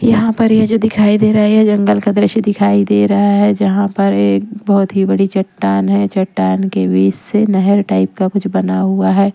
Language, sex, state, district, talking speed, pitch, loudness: Hindi, female, Odisha, Nuapada, 220 wpm, 195 Hz, -13 LUFS